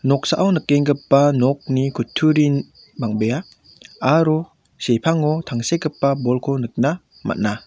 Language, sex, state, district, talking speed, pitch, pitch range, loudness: Garo, male, Meghalaya, West Garo Hills, 85 wpm, 140 Hz, 130-155 Hz, -19 LUFS